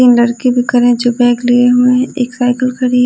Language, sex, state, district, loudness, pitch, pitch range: Hindi, female, Delhi, New Delhi, -11 LUFS, 245 Hz, 245-250 Hz